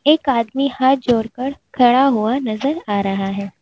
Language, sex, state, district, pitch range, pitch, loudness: Hindi, female, Uttar Pradesh, Lalitpur, 215-275 Hz, 250 Hz, -17 LUFS